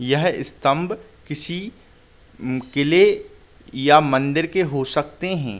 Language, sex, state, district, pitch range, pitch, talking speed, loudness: Hindi, male, Uttar Pradesh, Muzaffarnagar, 135-185 Hz, 150 Hz, 105 wpm, -19 LUFS